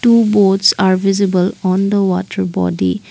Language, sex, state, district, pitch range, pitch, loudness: English, female, Assam, Kamrup Metropolitan, 180-200 Hz, 190 Hz, -14 LUFS